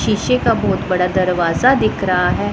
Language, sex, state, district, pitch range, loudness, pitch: Hindi, female, Punjab, Pathankot, 175-190 Hz, -16 LUFS, 180 Hz